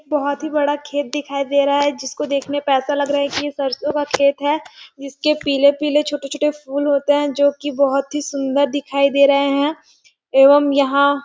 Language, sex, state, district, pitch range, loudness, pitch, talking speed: Hindi, female, Chhattisgarh, Sarguja, 280-290 Hz, -18 LUFS, 285 Hz, 185 wpm